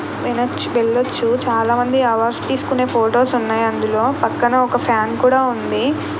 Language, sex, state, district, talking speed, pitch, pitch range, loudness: Telugu, female, Andhra Pradesh, Krishna, 115 wpm, 240 Hz, 230-250 Hz, -17 LUFS